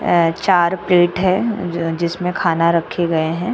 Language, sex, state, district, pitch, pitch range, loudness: Hindi, female, Uttar Pradesh, Jyotiba Phule Nagar, 175 Hz, 170-180 Hz, -17 LUFS